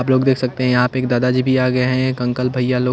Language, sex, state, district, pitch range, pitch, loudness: Hindi, male, Chandigarh, Chandigarh, 125-130 Hz, 125 Hz, -17 LUFS